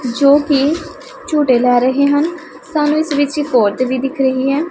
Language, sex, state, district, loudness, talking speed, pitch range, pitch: Punjabi, female, Punjab, Pathankot, -14 LUFS, 190 wpm, 260-300 Hz, 280 Hz